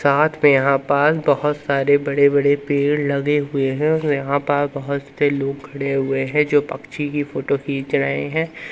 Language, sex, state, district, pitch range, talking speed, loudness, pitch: Hindi, male, Madhya Pradesh, Umaria, 140-145 Hz, 185 wpm, -19 LUFS, 140 Hz